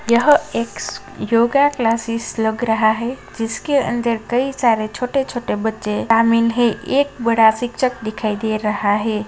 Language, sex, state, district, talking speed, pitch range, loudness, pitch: Hindi, female, Maharashtra, Sindhudurg, 140 wpm, 220-245 Hz, -18 LUFS, 230 Hz